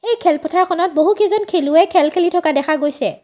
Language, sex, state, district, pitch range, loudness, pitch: Assamese, female, Assam, Sonitpur, 310-365 Hz, -15 LUFS, 345 Hz